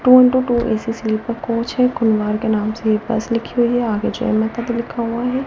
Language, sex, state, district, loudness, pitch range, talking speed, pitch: Hindi, female, Delhi, New Delhi, -18 LUFS, 220-240 Hz, 240 wpm, 230 Hz